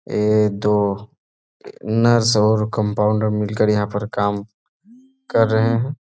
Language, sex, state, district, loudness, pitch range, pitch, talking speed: Hindi, male, Chhattisgarh, Bastar, -18 LUFS, 105-115 Hz, 105 Hz, 120 wpm